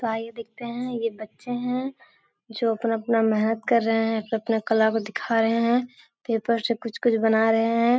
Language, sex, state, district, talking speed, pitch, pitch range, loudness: Hindi, female, Bihar, Jahanabad, 190 wpm, 230 Hz, 225-235 Hz, -24 LUFS